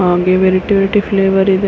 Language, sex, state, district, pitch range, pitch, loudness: Kannada, female, Karnataka, Mysore, 185-195 Hz, 195 Hz, -12 LUFS